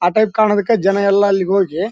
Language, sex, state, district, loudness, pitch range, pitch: Kannada, male, Karnataka, Bellary, -15 LUFS, 195-215 Hz, 200 Hz